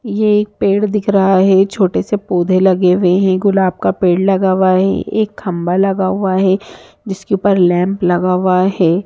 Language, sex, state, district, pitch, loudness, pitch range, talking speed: Hindi, female, Bihar, Sitamarhi, 190 Hz, -13 LUFS, 185-200 Hz, 190 wpm